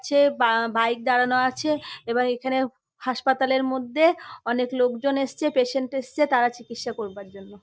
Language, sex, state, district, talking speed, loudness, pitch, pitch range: Bengali, female, West Bengal, North 24 Parganas, 150 wpm, -24 LUFS, 255 Hz, 240-270 Hz